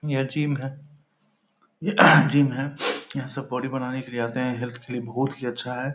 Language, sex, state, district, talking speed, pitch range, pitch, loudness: Hindi, male, Bihar, Purnia, 250 wpm, 125-140 Hz, 135 Hz, -24 LUFS